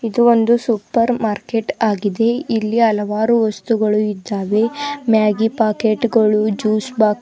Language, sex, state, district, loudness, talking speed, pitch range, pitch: Kannada, female, Karnataka, Koppal, -17 LUFS, 125 wpm, 215-230 Hz, 220 Hz